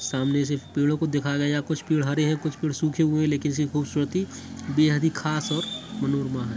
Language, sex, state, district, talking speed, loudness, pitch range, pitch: Hindi, male, Bihar, Muzaffarpur, 210 wpm, -25 LUFS, 145-155 Hz, 150 Hz